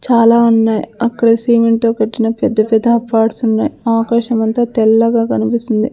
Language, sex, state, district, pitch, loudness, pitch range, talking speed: Telugu, female, Andhra Pradesh, Sri Satya Sai, 230 Hz, -13 LUFS, 225-235 Hz, 140 wpm